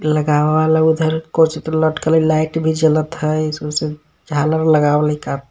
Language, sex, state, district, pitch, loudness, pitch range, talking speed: Magahi, male, Jharkhand, Palamu, 155 Hz, -16 LUFS, 150-160 Hz, 140 wpm